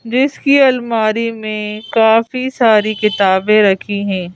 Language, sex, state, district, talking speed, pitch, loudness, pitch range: Hindi, female, Madhya Pradesh, Bhopal, 110 wpm, 215 Hz, -14 LUFS, 210-235 Hz